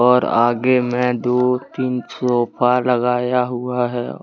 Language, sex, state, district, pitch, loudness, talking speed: Hindi, male, Jharkhand, Deoghar, 125 Hz, -18 LUFS, 125 wpm